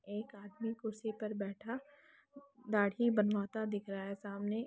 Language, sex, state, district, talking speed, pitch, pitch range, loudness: Hindi, female, Bihar, Lakhisarai, 140 wpm, 215 Hz, 205-235 Hz, -38 LUFS